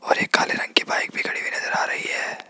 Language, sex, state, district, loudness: Hindi, male, Rajasthan, Jaipur, -22 LUFS